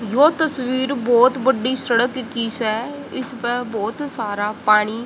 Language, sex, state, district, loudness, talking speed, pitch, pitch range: Hindi, female, Haryana, Jhajjar, -19 LUFS, 130 wpm, 245 Hz, 225-260 Hz